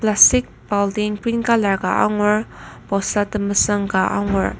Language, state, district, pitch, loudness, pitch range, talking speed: Ao, Nagaland, Kohima, 205 Hz, -18 LUFS, 200-215 Hz, 130 wpm